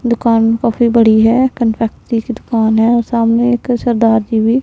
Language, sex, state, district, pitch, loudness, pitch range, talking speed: Hindi, female, Punjab, Pathankot, 230 Hz, -13 LUFS, 225-240 Hz, 180 wpm